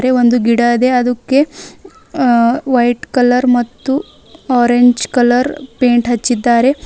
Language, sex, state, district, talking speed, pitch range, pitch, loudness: Kannada, female, Karnataka, Bidar, 115 wpm, 240-260 Hz, 245 Hz, -13 LUFS